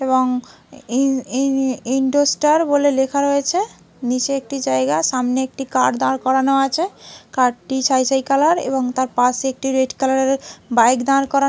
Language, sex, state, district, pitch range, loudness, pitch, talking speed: Bengali, female, West Bengal, Malda, 255-275 Hz, -18 LUFS, 265 Hz, 155 wpm